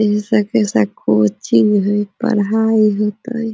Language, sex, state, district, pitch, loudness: Hindi, female, Bihar, Muzaffarpur, 205 Hz, -15 LUFS